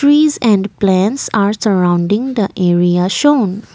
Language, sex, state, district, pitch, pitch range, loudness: English, female, Assam, Kamrup Metropolitan, 205 Hz, 185-240 Hz, -13 LUFS